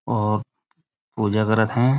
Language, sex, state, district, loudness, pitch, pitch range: Chhattisgarhi, male, Chhattisgarh, Raigarh, -22 LUFS, 110 Hz, 105-125 Hz